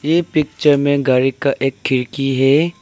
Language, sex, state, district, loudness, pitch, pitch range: Hindi, male, Arunachal Pradesh, Lower Dibang Valley, -16 LUFS, 140 Hz, 135-150 Hz